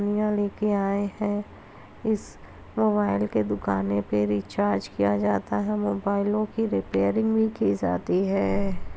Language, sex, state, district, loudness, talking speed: Hindi, female, Uttar Pradesh, Hamirpur, -25 LUFS, 135 wpm